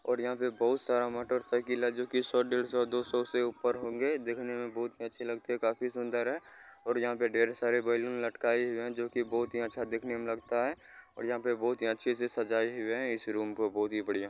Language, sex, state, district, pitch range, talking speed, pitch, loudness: Hindi, male, Bihar, Gopalganj, 115-120 Hz, 250 wpm, 120 Hz, -33 LUFS